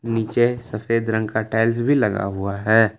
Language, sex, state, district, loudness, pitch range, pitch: Hindi, male, Jharkhand, Palamu, -20 LUFS, 105-115 Hz, 110 Hz